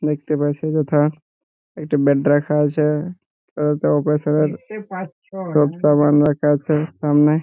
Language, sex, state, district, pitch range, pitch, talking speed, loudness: Bengali, male, West Bengal, Purulia, 145-155 Hz, 150 Hz, 115 wpm, -18 LUFS